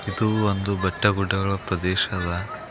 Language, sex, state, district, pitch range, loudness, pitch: Kannada, male, Karnataka, Bidar, 90-105 Hz, -23 LUFS, 95 Hz